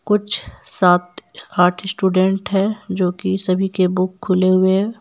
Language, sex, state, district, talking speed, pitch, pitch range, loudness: Hindi, female, Jharkhand, Ranchi, 155 wpm, 190 Hz, 185-195 Hz, -18 LUFS